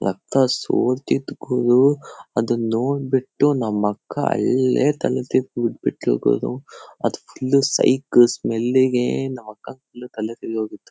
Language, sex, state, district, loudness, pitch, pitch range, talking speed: Kannada, male, Karnataka, Shimoga, -20 LUFS, 125 Hz, 115-130 Hz, 115 wpm